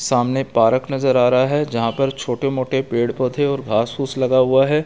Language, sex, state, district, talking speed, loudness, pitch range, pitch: Hindi, male, Chhattisgarh, Raigarh, 220 wpm, -18 LUFS, 125-135 Hz, 130 Hz